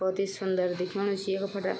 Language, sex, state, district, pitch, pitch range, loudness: Garhwali, female, Uttarakhand, Tehri Garhwal, 195 Hz, 185-195 Hz, -30 LUFS